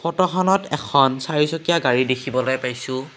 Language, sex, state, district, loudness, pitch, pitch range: Assamese, male, Assam, Kamrup Metropolitan, -20 LUFS, 135 Hz, 130-165 Hz